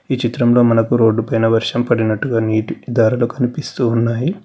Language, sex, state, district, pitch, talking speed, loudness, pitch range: Telugu, male, Telangana, Hyderabad, 120 Hz, 135 wpm, -16 LUFS, 115-125 Hz